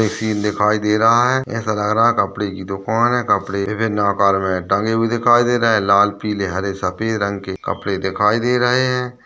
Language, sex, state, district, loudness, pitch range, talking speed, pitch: Hindi, male, Chhattisgarh, Balrampur, -17 LUFS, 100-115 Hz, 215 wpm, 105 Hz